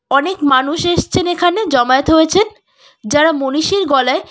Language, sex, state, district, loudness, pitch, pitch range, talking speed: Bengali, female, West Bengal, Cooch Behar, -14 LUFS, 315 Hz, 270-350 Hz, 125 wpm